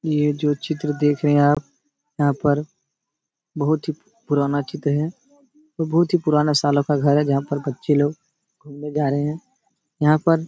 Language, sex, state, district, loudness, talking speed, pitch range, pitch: Hindi, male, Uttar Pradesh, Etah, -21 LUFS, 180 wpm, 145-165 Hz, 150 Hz